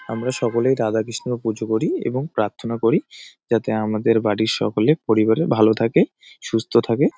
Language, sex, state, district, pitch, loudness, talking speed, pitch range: Bengali, male, West Bengal, Jalpaiguri, 115 Hz, -20 LUFS, 140 wpm, 110-125 Hz